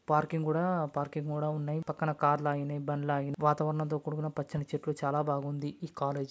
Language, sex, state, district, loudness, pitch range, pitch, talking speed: Telugu, male, Andhra Pradesh, Chittoor, -33 LUFS, 145-155 Hz, 150 Hz, 200 wpm